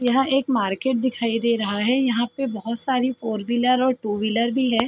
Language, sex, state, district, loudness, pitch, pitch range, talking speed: Hindi, female, Uttar Pradesh, Varanasi, -22 LUFS, 240 Hz, 230-260 Hz, 220 wpm